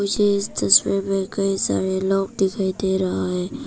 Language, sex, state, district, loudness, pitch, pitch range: Hindi, female, Arunachal Pradesh, Papum Pare, -20 LUFS, 195 Hz, 190-200 Hz